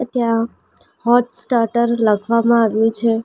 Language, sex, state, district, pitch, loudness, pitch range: Gujarati, female, Gujarat, Valsad, 230 Hz, -17 LUFS, 225-235 Hz